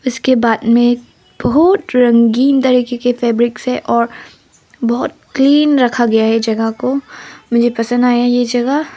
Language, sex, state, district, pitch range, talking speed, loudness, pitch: Hindi, female, Arunachal Pradesh, Papum Pare, 235-260 Hz, 145 wpm, -13 LUFS, 245 Hz